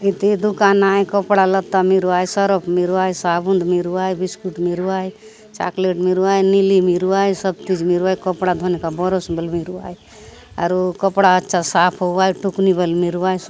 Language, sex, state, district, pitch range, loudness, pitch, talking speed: Halbi, female, Chhattisgarh, Bastar, 180-195 Hz, -17 LUFS, 185 Hz, 160 wpm